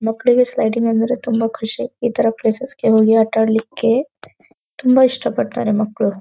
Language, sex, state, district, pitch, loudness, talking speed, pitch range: Kannada, female, Karnataka, Dharwad, 225 Hz, -17 LUFS, 155 wpm, 220-250 Hz